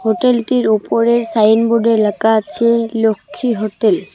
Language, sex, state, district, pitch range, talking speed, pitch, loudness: Bengali, female, West Bengal, Cooch Behar, 220-235 Hz, 130 wpm, 225 Hz, -14 LUFS